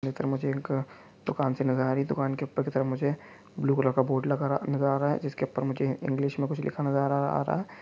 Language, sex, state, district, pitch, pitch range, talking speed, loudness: Hindi, male, Chhattisgarh, Korba, 135 Hz, 135-140 Hz, 275 wpm, -29 LUFS